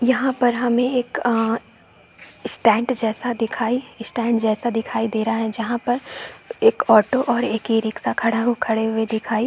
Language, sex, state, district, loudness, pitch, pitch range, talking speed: Hindi, female, Chhattisgarh, Bastar, -20 LUFS, 235 Hz, 225-245 Hz, 170 wpm